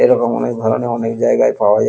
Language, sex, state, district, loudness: Bengali, male, West Bengal, Kolkata, -15 LUFS